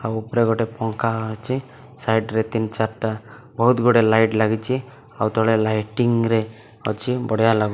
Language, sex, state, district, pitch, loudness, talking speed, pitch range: Odia, male, Odisha, Malkangiri, 110 Hz, -21 LUFS, 165 wpm, 110-120 Hz